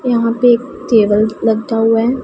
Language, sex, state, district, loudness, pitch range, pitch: Hindi, female, Punjab, Pathankot, -13 LUFS, 225-240 Hz, 230 Hz